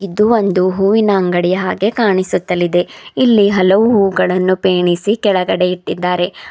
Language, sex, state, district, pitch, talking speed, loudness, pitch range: Kannada, female, Karnataka, Bidar, 190 Hz, 110 wpm, -14 LUFS, 180-205 Hz